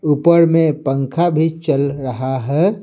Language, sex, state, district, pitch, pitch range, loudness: Hindi, male, Bihar, Patna, 155 Hz, 135-165 Hz, -16 LUFS